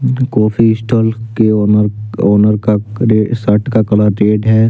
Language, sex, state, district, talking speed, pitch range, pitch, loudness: Hindi, male, Jharkhand, Deoghar, 140 wpm, 105-115 Hz, 110 Hz, -12 LUFS